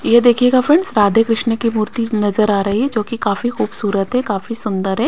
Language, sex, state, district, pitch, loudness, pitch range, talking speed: Hindi, female, Haryana, Rohtak, 225 Hz, -16 LUFS, 205-240 Hz, 225 wpm